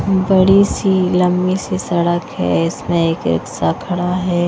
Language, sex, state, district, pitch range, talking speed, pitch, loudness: Hindi, female, Himachal Pradesh, Shimla, 165-185 Hz, 145 wpm, 180 Hz, -16 LUFS